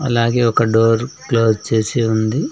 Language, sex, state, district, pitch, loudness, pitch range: Telugu, male, Andhra Pradesh, Sri Satya Sai, 115 Hz, -16 LUFS, 110-120 Hz